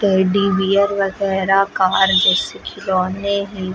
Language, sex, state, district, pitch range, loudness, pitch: Hindi, female, Uttar Pradesh, Lucknow, 190-200 Hz, -16 LUFS, 195 Hz